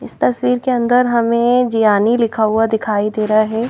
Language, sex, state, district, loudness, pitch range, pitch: Hindi, female, Madhya Pradesh, Bhopal, -15 LUFS, 215-245 Hz, 230 Hz